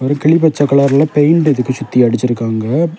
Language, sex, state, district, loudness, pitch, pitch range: Tamil, male, Tamil Nadu, Kanyakumari, -13 LUFS, 140 Hz, 125-155 Hz